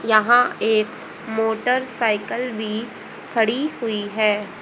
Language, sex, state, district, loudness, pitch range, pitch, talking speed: Hindi, female, Haryana, Rohtak, -21 LUFS, 215-240 Hz, 220 Hz, 90 wpm